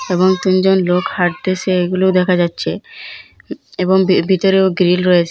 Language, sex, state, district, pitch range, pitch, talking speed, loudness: Bengali, female, Assam, Hailakandi, 180-190 Hz, 185 Hz, 125 wpm, -14 LUFS